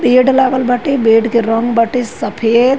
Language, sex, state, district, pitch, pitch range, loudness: Bhojpuri, female, Uttar Pradesh, Ghazipur, 240 Hz, 230-255 Hz, -13 LUFS